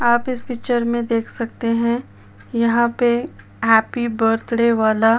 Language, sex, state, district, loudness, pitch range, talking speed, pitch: Hindi, female, Uttar Pradesh, Jyotiba Phule Nagar, -19 LUFS, 225-240 Hz, 150 wpm, 235 Hz